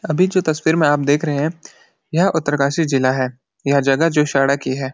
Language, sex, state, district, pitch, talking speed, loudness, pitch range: Hindi, male, Uttarakhand, Uttarkashi, 145 Hz, 205 wpm, -17 LUFS, 135-160 Hz